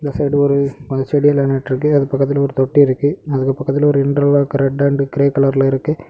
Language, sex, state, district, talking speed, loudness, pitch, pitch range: Tamil, male, Tamil Nadu, Kanyakumari, 175 wpm, -15 LUFS, 140 Hz, 135-145 Hz